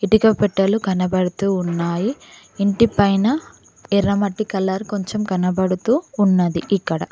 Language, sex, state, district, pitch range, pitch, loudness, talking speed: Telugu, female, Telangana, Mahabubabad, 185-210 Hz, 200 Hz, -19 LUFS, 100 wpm